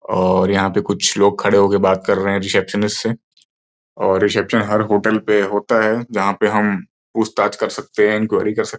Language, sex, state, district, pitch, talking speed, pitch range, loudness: Hindi, male, Uttar Pradesh, Gorakhpur, 105 Hz, 210 wpm, 100-110 Hz, -17 LUFS